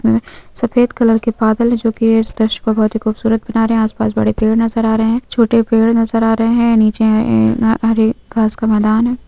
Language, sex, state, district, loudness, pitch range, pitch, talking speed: Hindi, female, West Bengal, Jhargram, -14 LUFS, 220-230 Hz, 225 Hz, 240 wpm